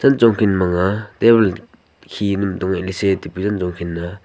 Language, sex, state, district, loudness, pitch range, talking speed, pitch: Wancho, male, Arunachal Pradesh, Longding, -18 LUFS, 90-105 Hz, 155 wpm, 95 Hz